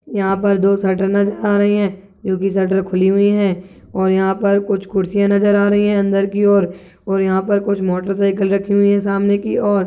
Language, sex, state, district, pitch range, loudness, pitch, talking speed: Hindi, male, Chhattisgarh, Balrampur, 190-200 Hz, -16 LUFS, 200 Hz, 225 wpm